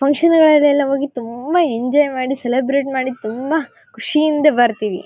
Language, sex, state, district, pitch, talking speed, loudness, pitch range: Kannada, female, Karnataka, Bellary, 275 Hz, 140 wpm, -16 LUFS, 245-300 Hz